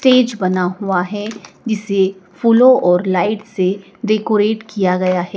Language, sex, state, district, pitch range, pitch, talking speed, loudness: Hindi, female, Madhya Pradesh, Dhar, 185-220 Hz, 200 Hz, 145 wpm, -16 LUFS